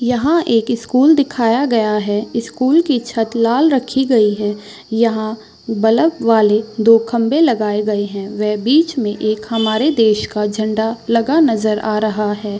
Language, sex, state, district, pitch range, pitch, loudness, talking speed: Hindi, female, Chhattisgarh, Raigarh, 215-245 Hz, 225 Hz, -15 LUFS, 160 wpm